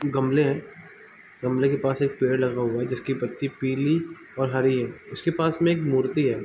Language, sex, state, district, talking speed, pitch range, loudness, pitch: Hindi, male, Bihar, East Champaran, 205 wpm, 130-145 Hz, -25 LUFS, 135 Hz